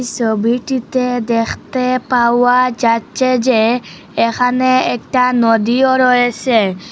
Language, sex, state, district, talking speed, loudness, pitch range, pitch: Bengali, female, Assam, Hailakandi, 80 wpm, -14 LUFS, 230-255 Hz, 245 Hz